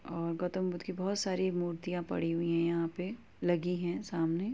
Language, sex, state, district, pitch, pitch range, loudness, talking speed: Hindi, female, Uttar Pradesh, Etah, 175 Hz, 170-185 Hz, -34 LUFS, 200 wpm